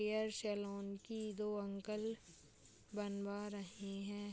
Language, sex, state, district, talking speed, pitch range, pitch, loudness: Hindi, female, Bihar, Purnia, 110 wpm, 200-210 Hz, 205 Hz, -45 LUFS